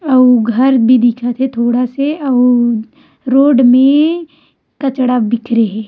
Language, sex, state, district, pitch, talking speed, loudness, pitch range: Chhattisgarhi, female, Chhattisgarh, Rajnandgaon, 250 Hz, 135 wpm, -12 LUFS, 240-270 Hz